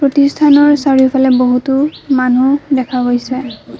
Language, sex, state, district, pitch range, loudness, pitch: Assamese, female, Assam, Kamrup Metropolitan, 255-280 Hz, -12 LUFS, 265 Hz